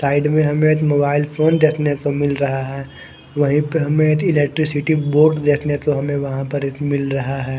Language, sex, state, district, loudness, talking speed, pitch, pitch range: Hindi, male, Haryana, Charkhi Dadri, -17 LUFS, 200 wpm, 145 Hz, 140-155 Hz